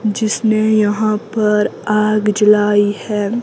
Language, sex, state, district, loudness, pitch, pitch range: Hindi, female, Himachal Pradesh, Shimla, -15 LUFS, 210 Hz, 210-215 Hz